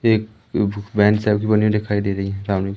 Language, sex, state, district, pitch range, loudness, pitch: Hindi, male, Madhya Pradesh, Umaria, 100-105 Hz, -20 LUFS, 105 Hz